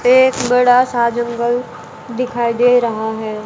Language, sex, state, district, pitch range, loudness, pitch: Hindi, female, Haryana, Charkhi Dadri, 230-245 Hz, -15 LUFS, 240 Hz